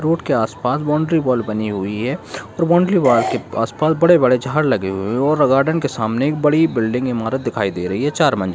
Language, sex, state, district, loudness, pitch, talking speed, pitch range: Hindi, male, Bihar, Jahanabad, -17 LUFS, 130 Hz, 225 wpm, 110-155 Hz